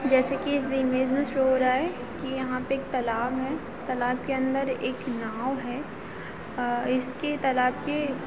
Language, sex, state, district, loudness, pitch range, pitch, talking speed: Hindi, female, Bihar, Sitamarhi, -27 LUFS, 250-270 Hz, 260 Hz, 150 wpm